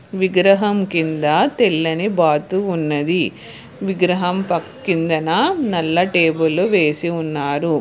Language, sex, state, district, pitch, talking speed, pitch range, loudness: Telugu, female, Telangana, Hyderabad, 170 Hz, 75 wpm, 160-190 Hz, -17 LUFS